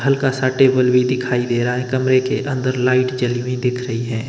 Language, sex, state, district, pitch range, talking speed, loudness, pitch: Hindi, male, Himachal Pradesh, Shimla, 125-130 Hz, 235 wpm, -18 LUFS, 125 Hz